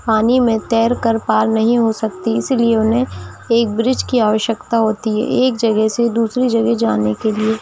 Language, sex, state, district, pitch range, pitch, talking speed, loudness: Hindi, female, Jharkhand, Jamtara, 215-235 Hz, 225 Hz, 190 wpm, -16 LUFS